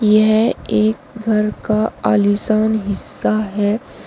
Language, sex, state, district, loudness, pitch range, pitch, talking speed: Hindi, female, Uttar Pradesh, Shamli, -17 LUFS, 210-220 Hz, 215 Hz, 105 wpm